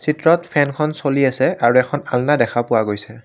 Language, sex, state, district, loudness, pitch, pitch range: Assamese, male, Assam, Kamrup Metropolitan, -17 LUFS, 135 Hz, 120-150 Hz